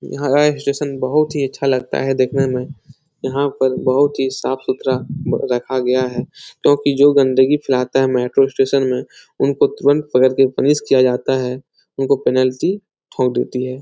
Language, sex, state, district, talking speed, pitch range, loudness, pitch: Hindi, male, Bihar, Supaul, 175 wpm, 130-140 Hz, -17 LUFS, 135 Hz